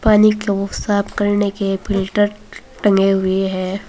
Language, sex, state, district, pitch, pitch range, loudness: Hindi, female, Uttar Pradesh, Saharanpur, 200 Hz, 195-205 Hz, -17 LUFS